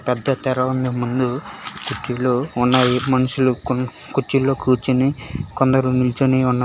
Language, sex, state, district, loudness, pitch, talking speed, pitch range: Telugu, male, Telangana, Hyderabad, -19 LUFS, 130 Hz, 100 wpm, 125-135 Hz